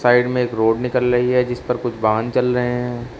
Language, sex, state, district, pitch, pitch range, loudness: Hindi, male, Uttar Pradesh, Shamli, 125 Hz, 120-125 Hz, -19 LUFS